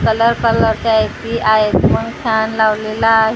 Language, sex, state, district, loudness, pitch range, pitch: Marathi, female, Maharashtra, Gondia, -14 LUFS, 215-225 Hz, 220 Hz